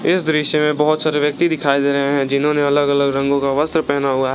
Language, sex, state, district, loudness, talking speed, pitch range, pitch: Hindi, male, Jharkhand, Garhwa, -16 LUFS, 235 wpm, 140-150 Hz, 145 Hz